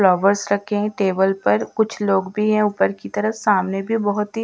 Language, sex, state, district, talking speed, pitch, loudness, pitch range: Hindi, female, Odisha, Malkangiri, 230 wpm, 200 Hz, -19 LUFS, 190-210 Hz